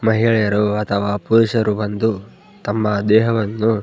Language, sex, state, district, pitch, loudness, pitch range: Kannada, male, Karnataka, Bellary, 105 Hz, -17 LUFS, 105-110 Hz